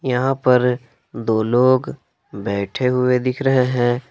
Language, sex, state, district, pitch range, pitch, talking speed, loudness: Hindi, male, Jharkhand, Palamu, 120-130 Hz, 125 Hz, 130 wpm, -18 LUFS